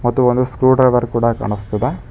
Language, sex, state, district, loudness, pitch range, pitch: Kannada, male, Karnataka, Bangalore, -16 LUFS, 115-130 Hz, 120 Hz